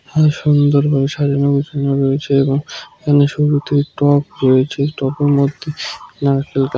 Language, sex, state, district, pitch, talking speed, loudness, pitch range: Bengali, male, West Bengal, Malda, 140 Hz, 140 wpm, -15 LUFS, 140-145 Hz